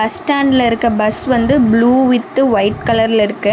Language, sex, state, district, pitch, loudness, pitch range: Tamil, female, Tamil Nadu, Namakkal, 235 Hz, -13 LUFS, 220-260 Hz